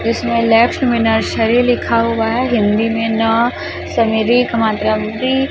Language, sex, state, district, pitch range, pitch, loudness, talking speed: Hindi, male, Chhattisgarh, Raipur, 225-240 Hz, 230 Hz, -15 LUFS, 120 wpm